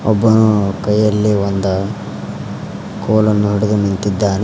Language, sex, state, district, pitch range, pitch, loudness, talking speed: Kannada, male, Karnataka, Koppal, 100-105 Hz, 105 Hz, -15 LUFS, 80 wpm